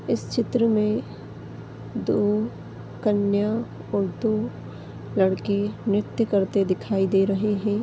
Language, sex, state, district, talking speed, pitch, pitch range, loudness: Hindi, female, Uttar Pradesh, Deoria, 105 wpm, 205 Hz, 195-215 Hz, -24 LUFS